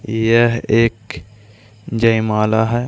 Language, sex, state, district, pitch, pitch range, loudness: Hindi, male, Bihar, Gaya, 110 Hz, 105-115 Hz, -16 LUFS